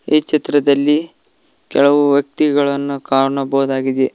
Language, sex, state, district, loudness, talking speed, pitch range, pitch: Kannada, male, Karnataka, Koppal, -15 LUFS, 70 wpm, 135-145 Hz, 140 Hz